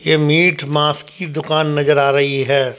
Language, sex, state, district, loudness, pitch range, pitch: Hindi, male, Uttar Pradesh, Budaun, -15 LUFS, 140-155 Hz, 150 Hz